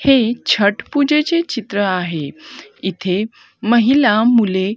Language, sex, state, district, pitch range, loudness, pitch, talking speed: Marathi, female, Maharashtra, Gondia, 190-265 Hz, -16 LUFS, 220 Hz, 100 wpm